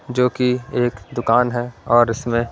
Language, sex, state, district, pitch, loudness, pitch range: Hindi, male, Punjab, Pathankot, 120 Hz, -19 LUFS, 115-125 Hz